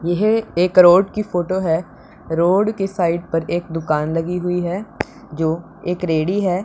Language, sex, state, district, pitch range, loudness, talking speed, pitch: Hindi, female, Punjab, Pathankot, 165-185 Hz, -19 LUFS, 170 wpm, 175 Hz